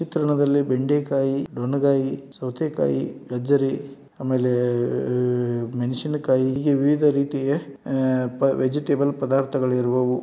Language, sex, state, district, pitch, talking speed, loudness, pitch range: Kannada, male, Karnataka, Dharwad, 135 Hz, 80 wpm, -22 LUFS, 125-140 Hz